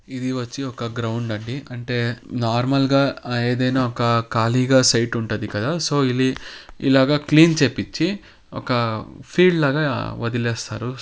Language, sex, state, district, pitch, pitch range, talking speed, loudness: Telugu, male, Andhra Pradesh, Anantapur, 125 Hz, 115-135 Hz, 120 wpm, -20 LUFS